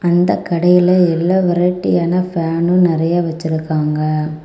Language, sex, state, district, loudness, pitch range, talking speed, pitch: Tamil, female, Tamil Nadu, Kanyakumari, -15 LUFS, 160-180 Hz, 95 wpm, 175 Hz